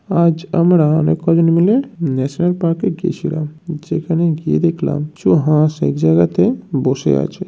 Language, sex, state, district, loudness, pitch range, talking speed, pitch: Bengali, male, West Bengal, North 24 Parganas, -16 LUFS, 150-175 Hz, 135 wpm, 165 Hz